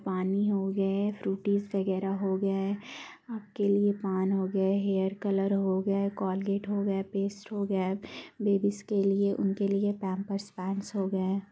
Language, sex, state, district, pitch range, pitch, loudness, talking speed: Hindi, female, Bihar, Gaya, 195-200 Hz, 195 Hz, -30 LUFS, 175 wpm